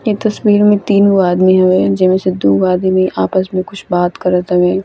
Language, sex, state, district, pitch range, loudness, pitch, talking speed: Bhojpuri, female, Bihar, Gopalganj, 180-200 Hz, -12 LUFS, 185 Hz, 210 wpm